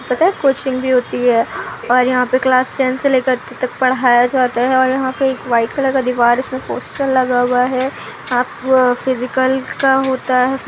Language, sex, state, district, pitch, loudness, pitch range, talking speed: Hindi, female, Bihar, Kishanganj, 255 Hz, -15 LUFS, 250-265 Hz, 200 wpm